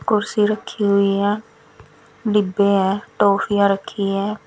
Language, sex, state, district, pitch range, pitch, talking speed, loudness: Hindi, female, Bihar, West Champaran, 195-210 Hz, 200 Hz, 120 wpm, -19 LUFS